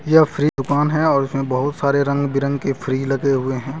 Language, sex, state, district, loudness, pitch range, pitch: Hindi, male, Jharkhand, Deoghar, -19 LUFS, 135-145 Hz, 140 Hz